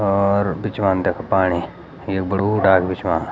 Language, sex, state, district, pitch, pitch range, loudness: Garhwali, male, Uttarakhand, Uttarkashi, 95 Hz, 95-100 Hz, -19 LUFS